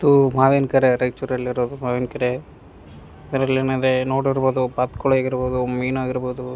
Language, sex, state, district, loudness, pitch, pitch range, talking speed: Kannada, male, Karnataka, Raichur, -20 LUFS, 130 Hz, 125-135 Hz, 90 wpm